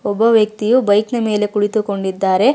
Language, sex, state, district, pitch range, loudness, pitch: Kannada, female, Karnataka, Bangalore, 205-225 Hz, -16 LUFS, 210 Hz